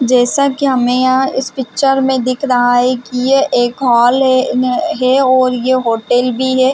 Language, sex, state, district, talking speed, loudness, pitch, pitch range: Hindi, female, Chhattisgarh, Bilaspur, 195 wpm, -13 LUFS, 255 Hz, 250-265 Hz